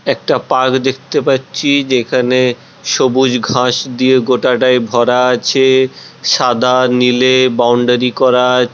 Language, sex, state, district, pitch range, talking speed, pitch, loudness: Bengali, male, West Bengal, Purulia, 125-130 Hz, 110 wpm, 125 Hz, -12 LUFS